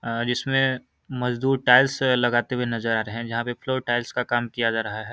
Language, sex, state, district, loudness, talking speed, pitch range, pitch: Hindi, male, Bihar, Samastipur, -23 LUFS, 235 wpm, 115-130 Hz, 120 Hz